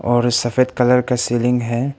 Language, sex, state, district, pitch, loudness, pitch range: Hindi, male, Arunachal Pradesh, Papum Pare, 125 Hz, -17 LUFS, 120-125 Hz